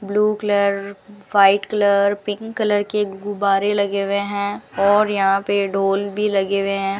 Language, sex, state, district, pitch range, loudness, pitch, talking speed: Hindi, female, Rajasthan, Bikaner, 195-205 Hz, -19 LUFS, 200 Hz, 165 wpm